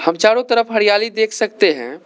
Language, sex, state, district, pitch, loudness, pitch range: Hindi, male, Arunachal Pradesh, Lower Dibang Valley, 220 Hz, -15 LUFS, 210-225 Hz